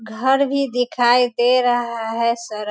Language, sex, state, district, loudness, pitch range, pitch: Hindi, female, Bihar, Sitamarhi, -18 LUFS, 230-250 Hz, 240 Hz